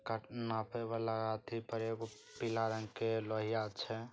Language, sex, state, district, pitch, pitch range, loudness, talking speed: Maithili, male, Bihar, Saharsa, 115 Hz, 110-115 Hz, -39 LUFS, 160 wpm